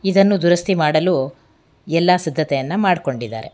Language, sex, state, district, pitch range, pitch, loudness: Kannada, female, Karnataka, Bangalore, 140-185 Hz, 165 Hz, -17 LUFS